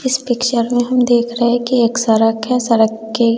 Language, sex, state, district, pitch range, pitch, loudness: Hindi, female, Bihar, West Champaran, 230-245 Hz, 240 Hz, -15 LUFS